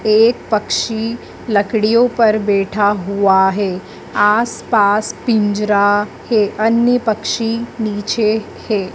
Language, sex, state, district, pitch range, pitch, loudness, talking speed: Hindi, female, Madhya Pradesh, Dhar, 205-225 Hz, 215 Hz, -15 LUFS, 95 wpm